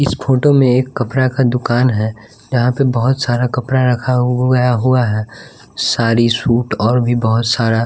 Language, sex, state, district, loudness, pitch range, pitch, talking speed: Hindi, male, Bihar, West Champaran, -15 LUFS, 115-130 Hz, 125 Hz, 170 wpm